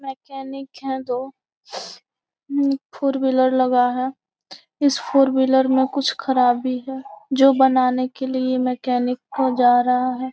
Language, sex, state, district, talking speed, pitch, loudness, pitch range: Hindi, female, Bihar, Gopalganj, 135 wpm, 260 Hz, -19 LUFS, 255-270 Hz